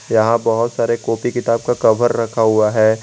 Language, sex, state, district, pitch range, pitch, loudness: Hindi, male, Jharkhand, Garhwa, 110-120 Hz, 115 Hz, -16 LUFS